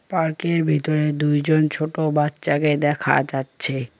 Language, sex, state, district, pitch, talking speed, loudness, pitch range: Bengali, male, West Bengal, Cooch Behar, 150 Hz, 105 wpm, -21 LUFS, 145-155 Hz